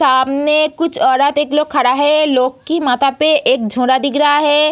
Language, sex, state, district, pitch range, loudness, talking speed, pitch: Hindi, female, Bihar, Samastipur, 260-300 Hz, -13 LUFS, 205 wpm, 290 Hz